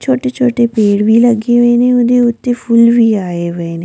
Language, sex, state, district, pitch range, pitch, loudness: Punjabi, female, Delhi, New Delhi, 215-245 Hz, 235 Hz, -11 LUFS